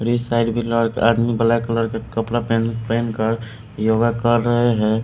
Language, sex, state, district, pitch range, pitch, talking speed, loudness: Hindi, male, Delhi, New Delhi, 115-120 Hz, 115 Hz, 155 wpm, -19 LUFS